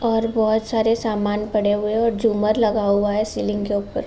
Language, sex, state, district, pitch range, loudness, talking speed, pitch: Hindi, female, Uttar Pradesh, Jalaun, 205-225 Hz, -20 LUFS, 220 wpm, 215 Hz